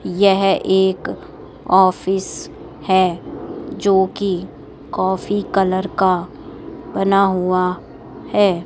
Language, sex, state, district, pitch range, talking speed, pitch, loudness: Hindi, female, Rajasthan, Jaipur, 185-195 Hz, 85 wpm, 190 Hz, -18 LUFS